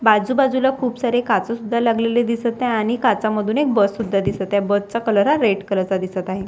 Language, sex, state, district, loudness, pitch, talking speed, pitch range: Marathi, female, Maharashtra, Washim, -19 LUFS, 225 Hz, 220 wpm, 200-240 Hz